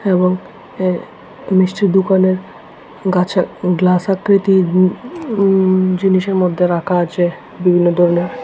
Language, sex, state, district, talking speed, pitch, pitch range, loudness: Bengali, male, Tripura, West Tripura, 120 wpm, 185 Hz, 180-190 Hz, -15 LUFS